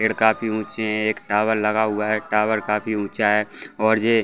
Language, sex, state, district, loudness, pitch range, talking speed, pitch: Hindi, male, Jharkhand, Jamtara, -21 LUFS, 105-110 Hz, 225 wpm, 110 Hz